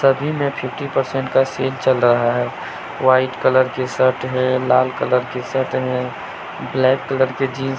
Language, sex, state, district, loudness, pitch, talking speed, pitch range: Hindi, male, Jharkhand, Deoghar, -18 LUFS, 130 Hz, 185 wpm, 130-135 Hz